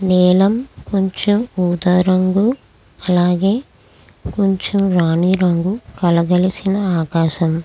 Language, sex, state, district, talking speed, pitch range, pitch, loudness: Telugu, female, Andhra Pradesh, Krishna, 70 wpm, 175-195 Hz, 185 Hz, -16 LUFS